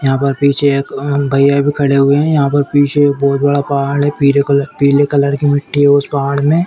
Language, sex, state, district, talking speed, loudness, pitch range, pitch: Hindi, female, Uttar Pradesh, Etah, 240 wpm, -13 LUFS, 140-145 Hz, 140 Hz